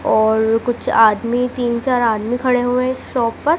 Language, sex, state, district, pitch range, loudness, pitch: Hindi, female, Madhya Pradesh, Dhar, 225-250 Hz, -17 LUFS, 245 Hz